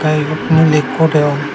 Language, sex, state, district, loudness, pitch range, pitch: Chakma, male, Tripura, Dhalai, -13 LUFS, 145-160 Hz, 155 Hz